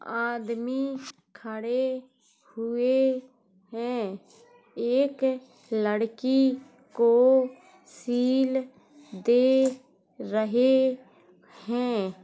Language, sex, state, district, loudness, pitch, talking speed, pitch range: Hindi, female, Uttar Pradesh, Hamirpur, -26 LUFS, 250 Hz, 55 wpm, 230-260 Hz